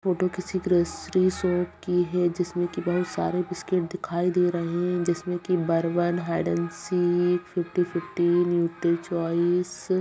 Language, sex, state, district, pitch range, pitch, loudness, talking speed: Hindi, female, Bihar, Bhagalpur, 175-180 Hz, 175 Hz, -26 LUFS, 85 wpm